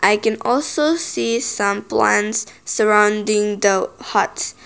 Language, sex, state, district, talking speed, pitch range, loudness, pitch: English, female, Nagaland, Kohima, 115 wpm, 210-240 Hz, -18 LUFS, 215 Hz